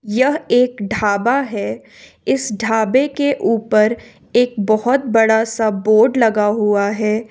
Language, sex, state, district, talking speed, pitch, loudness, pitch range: Hindi, female, Jharkhand, Ranchi, 130 wpm, 220 Hz, -16 LUFS, 215-245 Hz